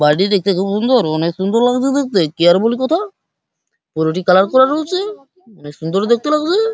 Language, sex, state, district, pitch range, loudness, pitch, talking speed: Bengali, male, West Bengal, Paschim Medinipur, 180-280 Hz, -15 LUFS, 220 Hz, 170 wpm